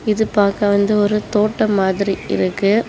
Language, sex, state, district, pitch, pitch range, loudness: Tamil, female, Tamil Nadu, Kanyakumari, 205 Hz, 200-215 Hz, -17 LUFS